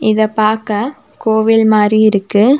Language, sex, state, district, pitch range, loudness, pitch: Tamil, female, Tamil Nadu, Nilgiris, 215-225 Hz, -12 LUFS, 215 Hz